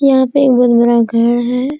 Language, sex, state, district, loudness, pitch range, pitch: Hindi, female, Bihar, Kishanganj, -11 LUFS, 235-270 Hz, 245 Hz